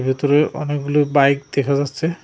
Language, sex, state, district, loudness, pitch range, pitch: Bengali, male, West Bengal, Cooch Behar, -18 LUFS, 140-150 Hz, 145 Hz